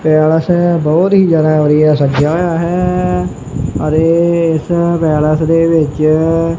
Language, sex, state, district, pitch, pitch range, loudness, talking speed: Punjabi, male, Punjab, Kapurthala, 160 Hz, 150-170 Hz, -12 LUFS, 125 wpm